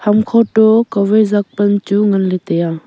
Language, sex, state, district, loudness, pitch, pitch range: Wancho, female, Arunachal Pradesh, Longding, -13 LUFS, 205 Hz, 200-220 Hz